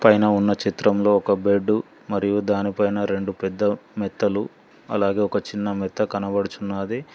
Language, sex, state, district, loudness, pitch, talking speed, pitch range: Telugu, male, Telangana, Mahabubabad, -22 LUFS, 100 Hz, 125 wpm, 100-105 Hz